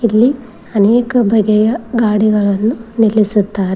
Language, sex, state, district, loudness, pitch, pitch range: Kannada, female, Karnataka, Koppal, -13 LUFS, 220 Hz, 210-230 Hz